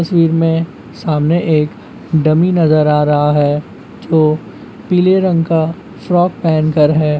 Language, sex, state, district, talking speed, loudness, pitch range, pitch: Hindi, male, Jharkhand, Sahebganj, 140 wpm, -13 LUFS, 150-170 Hz, 160 Hz